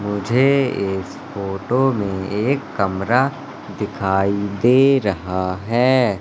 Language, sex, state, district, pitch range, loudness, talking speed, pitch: Hindi, male, Madhya Pradesh, Katni, 95-130 Hz, -19 LUFS, 95 wpm, 105 Hz